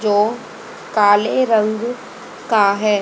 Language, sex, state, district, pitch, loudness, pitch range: Hindi, female, Haryana, Jhajjar, 215 Hz, -16 LUFS, 205-225 Hz